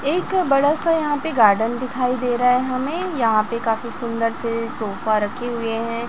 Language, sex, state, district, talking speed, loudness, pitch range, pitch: Hindi, female, Chhattisgarh, Raipur, 195 wpm, -20 LUFS, 230-275 Hz, 240 Hz